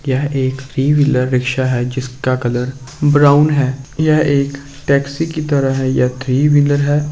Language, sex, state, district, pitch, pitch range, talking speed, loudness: Hindi, male, Bihar, Samastipur, 140 Hz, 130-145 Hz, 170 wpm, -15 LUFS